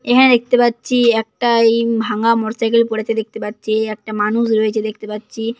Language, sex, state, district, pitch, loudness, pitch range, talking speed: Bengali, female, West Bengal, Paschim Medinipur, 225 Hz, -16 LUFS, 215-235 Hz, 160 wpm